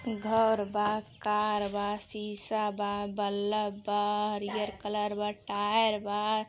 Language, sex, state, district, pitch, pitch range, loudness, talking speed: Hindi, female, Uttar Pradesh, Gorakhpur, 210 Hz, 205-215 Hz, -31 LUFS, 130 wpm